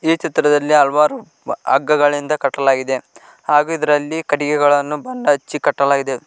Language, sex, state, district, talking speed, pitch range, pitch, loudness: Kannada, male, Karnataka, Koppal, 105 wpm, 140-150 Hz, 145 Hz, -16 LUFS